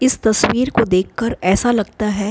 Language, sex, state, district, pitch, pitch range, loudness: Hindi, female, Maharashtra, Chandrapur, 220 Hz, 205-240 Hz, -17 LUFS